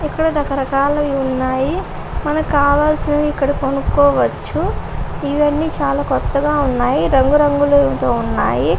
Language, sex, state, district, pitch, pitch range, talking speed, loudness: Telugu, female, Andhra Pradesh, Srikakulam, 285 Hz, 275-295 Hz, 90 wpm, -16 LUFS